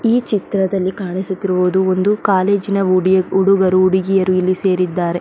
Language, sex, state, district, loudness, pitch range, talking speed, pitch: Kannada, female, Karnataka, Belgaum, -16 LUFS, 185-195 Hz, 125 wpm, 190 Hz